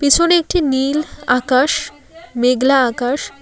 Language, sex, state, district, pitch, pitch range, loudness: Bengali, female, West Bengal, Alipurduar, 270 Hz, 255-310 Hz, -15 LUFS